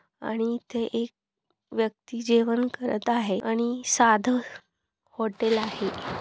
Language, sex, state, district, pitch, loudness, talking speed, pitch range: Marathi, female, Maharashtra, Solapur, 230 Hz, -26 LUFS, 105 wpm, 225-240 Hz